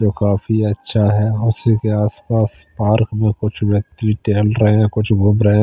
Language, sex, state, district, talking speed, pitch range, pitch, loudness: Hindi, male, Chandigarh, Chandigarh, 190 wpm, 105-110 Hz, 105 Hz, -16 LUFS